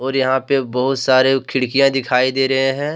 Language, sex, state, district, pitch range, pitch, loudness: Hindi, male, Jharkhand, Deoghar, 130-135 Hz, 135 Hz, -16 LUFS